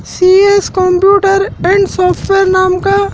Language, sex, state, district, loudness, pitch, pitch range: Hindi, male, Madhya Pradesh, Dhar, -10 LUFS, 390 Hz, 370-395 Hz